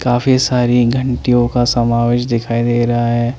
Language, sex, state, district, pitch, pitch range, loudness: Hindi, male, Chandigarh, Chandigarh, 120 Hz, 120-125 Hz, -14 LUFS